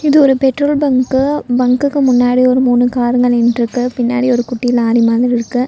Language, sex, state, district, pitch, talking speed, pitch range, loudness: Tamil, female, Tamil Nadu, Nilgiris, 250 Hz, 170 wpm, 245-265 Hz, -13 LUFS